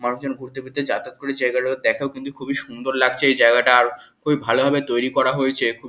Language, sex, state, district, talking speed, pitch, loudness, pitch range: Bengali, male, West Bengal, Kolkata, 205 wpm, 130 Hz, -20 LUFS, 125-140 Hz